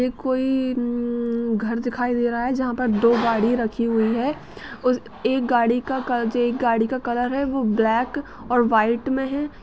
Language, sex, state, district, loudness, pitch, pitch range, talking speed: Hindi, female, Uttarakhand, Tehri Garhwal, -22 LUFS, 240 Hz, 235-255 Hz, 185 wpm